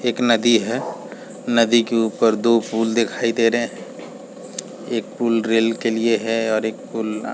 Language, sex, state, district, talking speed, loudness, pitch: Hindi, male, Chhattisgarh, Balrampur, 190 wpm, -19 LUFS, 115 Hz